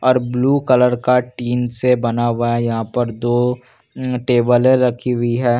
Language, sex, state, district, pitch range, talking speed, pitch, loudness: Hindi, male, Bihar, Katihar, 120-125 Hz, 170 wpm, 125 Hz, -17 LUFS